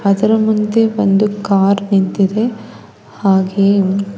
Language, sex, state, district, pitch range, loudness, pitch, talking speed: Kannada, female, Karnataka, Bangalore, 195-215 Hz, -14 LUFS, 200 Hz, 85 wpm